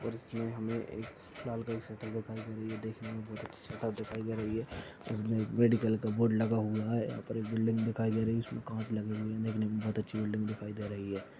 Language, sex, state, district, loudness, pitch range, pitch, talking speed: Hindi, male, Uttar Pradesh, Ghazipur, -35 LUFS, 110-115 Hz, 110 Hz, 270 wpm